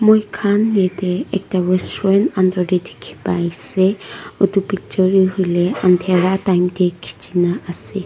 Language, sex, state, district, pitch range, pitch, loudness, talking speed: Nagamese, female, Nagaland, Dimapur, 180-195 Hz, 185 Hz, -17 LUFS, 135 wpm